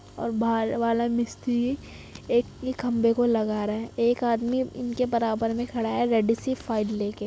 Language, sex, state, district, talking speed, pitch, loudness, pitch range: Hindi, female, Uttar Pradesh, Muzaffarnagar, 180 wpm, 235 Hz, -26 LUFS, 225-245 Hz